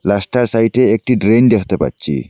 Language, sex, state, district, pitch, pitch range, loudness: Bengali, male, Assam, Hailakandi, 115 Hz, 100-120 Hz, -14 LUFS